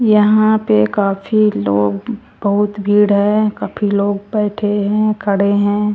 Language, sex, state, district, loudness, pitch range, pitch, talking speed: Hindi, female, Bihar, Katihar, -15 LUFS, 200-215 Hz, 205 Hz, 130 wpm